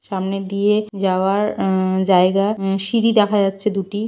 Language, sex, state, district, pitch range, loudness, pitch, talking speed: Bengali, female, West Bengal, Purulia, 190-210 Hz, -18 LUFS, 195 Hz, 145 wpm